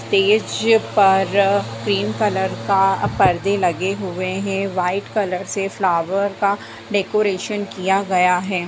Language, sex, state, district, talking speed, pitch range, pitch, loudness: Hindi, female, Bihar, Begusarai, 125 wpm, 185-200 Hz, 195 Hz, -19 LUFS